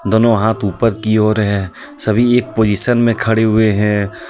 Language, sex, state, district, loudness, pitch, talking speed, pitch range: Hindi, male, Jharkhand, Deoghar, -14 LUFS, 110 Hz, 195 wpm, 105-115 Hz